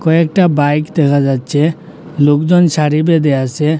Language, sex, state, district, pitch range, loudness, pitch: Bengali, male, Assam, Hailakandi, 145-165 Hz, -12 LUFS, 155 Hz